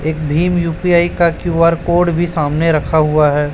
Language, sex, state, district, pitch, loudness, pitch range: Hindi, male, Chhattisgarh, Raipur, 165 Hz, -14 LUFS, 155-170 Hz